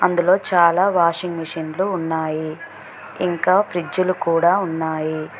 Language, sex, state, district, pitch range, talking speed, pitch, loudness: Telugu, female, Telangana, Mahabubabad, 160-185 Hz, 120 wpm, 170 Hz, -19 LUFS